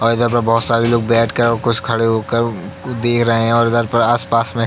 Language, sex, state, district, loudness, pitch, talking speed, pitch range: Hindi, male, Uttar Pradesh, Jalaun, -15 LUFS, 115 Hz, 285 wpm, 115-120 Hz